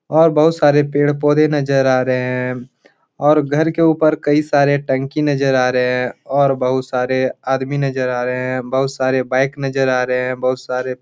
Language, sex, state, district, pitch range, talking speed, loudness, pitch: Hindi, male, Uttar Pradesh, Etah, 130-145 Hz, 205 wpm, -16 LUFS, 135 Hz